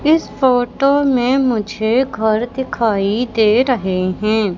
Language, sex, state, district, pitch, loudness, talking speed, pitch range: Hindi, female, Madhya Pradesh, Katni, 235 Hz, -16 LUFS, 120 wpm, 215-260 Hz